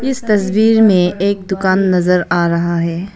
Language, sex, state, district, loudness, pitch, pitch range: Hindi, female, Arunachal Pradesh, Papum Pare, -14 LUFS, 190 Hz, 175-205 Hz